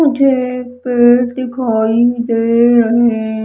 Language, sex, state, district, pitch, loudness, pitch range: Hindi, female, Madhya Pradesh, Umaria, 240 Hz, -13 LUFS, 230-250 Hz